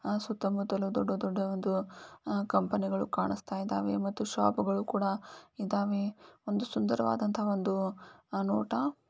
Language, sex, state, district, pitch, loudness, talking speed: Kannada, female, Karnataka, Dharwad, 195 Hz, -32 LUFS, 90 wpm